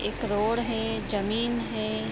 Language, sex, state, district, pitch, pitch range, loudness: Hindi, female, Bihar, Vaishali, 220 Hz, 200-230 Hz, -28 LUFS